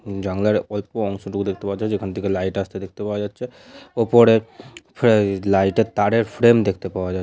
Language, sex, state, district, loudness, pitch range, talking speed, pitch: Bengali, male, West Bengal, Jhargram, -20 LUFS, 95-110 Hz, 200 wpm, 100 Hz